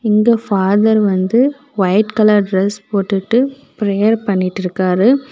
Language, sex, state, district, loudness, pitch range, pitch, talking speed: Tamil, female, Tamil Nadu, Kanyakumari, -15 LUFS, 195-225 Hz, 210 Hz, 115 wpm